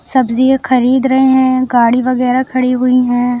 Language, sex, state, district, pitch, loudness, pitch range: Hindi, female, Bihar, Kaimur, 255 Hz, -12 LUFS, 250-260 Hz